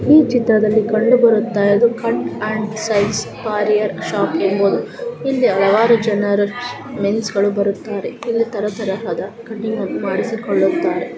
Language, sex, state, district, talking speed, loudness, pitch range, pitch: Kannada, female, Karnataka, Chamarajanagar, 105 wpm, -17 LUFS, 205-230 Hz, 215 Hz